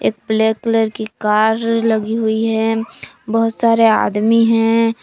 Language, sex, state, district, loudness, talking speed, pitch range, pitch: Hindi, female, Jharkhand, Palamu, -15 LUFS, 145 wpm, 220-230 Hz, 225 Hz